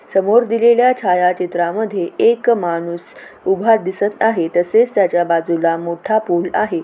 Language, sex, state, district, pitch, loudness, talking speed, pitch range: Marathi, female, Maharashtra, Aurangabad, 195 Hz, -16 LUFS, 130 wpm, 175-230 Hz